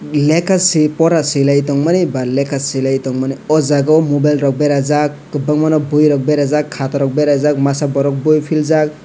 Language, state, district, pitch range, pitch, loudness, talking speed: Kokborok, Tripura, West Tripura, 140-155 Hz, 150 Hz, -14 LUFS, 170 wpm